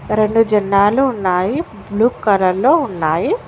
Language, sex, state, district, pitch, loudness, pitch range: Telugu, female, Telangana, Mahabubabad, 215 Hz, -15 LUFS, 200-240 Hz